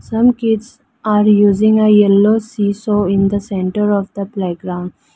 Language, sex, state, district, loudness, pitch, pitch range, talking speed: English, female, Arunachal Pradesh, Lower Dibang Valley, -14 LUFS, 205 Hz, 195-215 Hz, 165 wpm